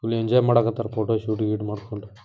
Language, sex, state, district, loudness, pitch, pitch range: Kannada, male, Karnataka, Dharwad, -23 LUFS, 110 Hz, 105-115 Hz